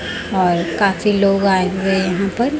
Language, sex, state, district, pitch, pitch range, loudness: Hindi, female, Chhattisgarh, Raipur, 195 Hz, 185-200 Hz, -17 LUFS